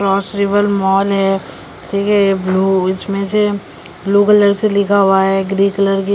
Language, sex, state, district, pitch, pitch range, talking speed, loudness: Hindi, female, Delhi, New Delhi, 195 Hz, 195-200 Hz, 195 wpm, -14 LUFS